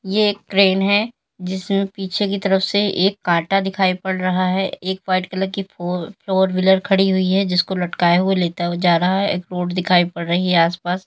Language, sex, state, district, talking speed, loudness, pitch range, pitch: Hindi, female, Uttar Pradesh, Lalitpur, 215 wpm, -18 LUFS, 180-195 Hz, 190 Hz